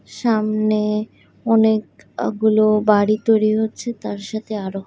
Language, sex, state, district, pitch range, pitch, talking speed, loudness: Bengali, female, Odisha, Khordha, 210-220 Hz, 215 Hz, 100 wpm, -19 LUFS